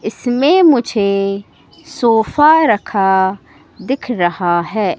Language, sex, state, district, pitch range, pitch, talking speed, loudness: Hindi, female, Madhya Pradesh, Katni, 195-265 Hz, 215 Hz, 85 wpm, -14 LUFS